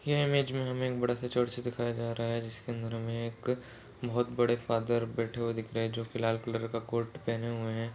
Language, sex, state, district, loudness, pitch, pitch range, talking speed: Hindi, male, Goa, North and South Goa, -33 LUFS, 115 Hz, 115-120 Hz, 240 wpm